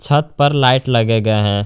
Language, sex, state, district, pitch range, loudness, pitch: Hindi, male, Jharkhand, Garhwa, 110-145 Hz, -14 LUFS, 125 Hz